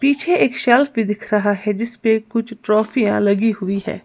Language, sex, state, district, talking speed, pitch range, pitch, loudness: Hindi, female, Uttar Pradesh, Lalitpur, 190 wpm, 210-240 Hz, 220 Hz, -18 LUFS